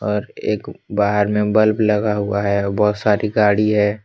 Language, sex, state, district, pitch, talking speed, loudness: Hindi, male, Jharkhand, Deoghar, 105 Hz, 190 wpm, -18 LUFS